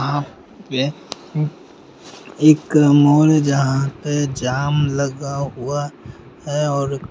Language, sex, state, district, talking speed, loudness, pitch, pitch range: Hindi, male, Bihar, Bhagalpur, 95 wpm, -18 LUFS, 140 Hz, 135-145 Hz